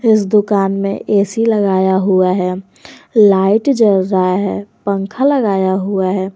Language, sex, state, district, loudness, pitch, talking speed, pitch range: Hindi, female, Jharkhand, Garhwa, -14 LUFS, 195 Hz, 140 wpm, 190-210 Hz